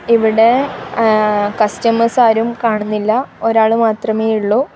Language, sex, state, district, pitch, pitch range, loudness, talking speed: Malayalam, female, Kerala, Kasaragod, 220 Hz, 215-230 Hz, -14 LUFS, 100 wpm